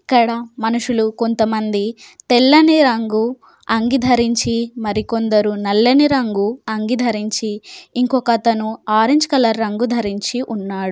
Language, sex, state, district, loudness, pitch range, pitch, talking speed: Telugu, female, Telangana, Komaram Bheem, -16 LUFS, 220-245 Hz, 230 Hz, 100 wpm